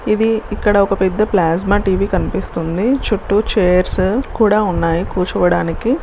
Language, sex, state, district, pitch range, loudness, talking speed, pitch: Telugu, female, Telangana, Karimnagar, 180-215 Hz, -16 LUFS, 130 wpm, 200 Hz